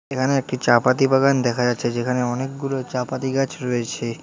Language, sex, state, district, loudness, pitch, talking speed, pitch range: Bengali, male, West Bengal, Alipurduar, -21 LUFS, 130 Hz, 185 wpm, 120-135 Hz